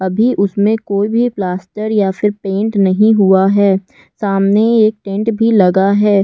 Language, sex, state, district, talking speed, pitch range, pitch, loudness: Hindi, female, Chhattisgarh, Kabirdham, 165 wpm, 195-215 Hz, 205 Hz, -13 LUFS